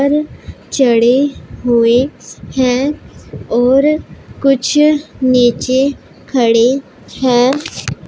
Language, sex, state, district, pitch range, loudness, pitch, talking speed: Hindi, female, Punjab, Pathankot, 245-280 Hz, -13 LUFS, 260 Hz, 65 wpm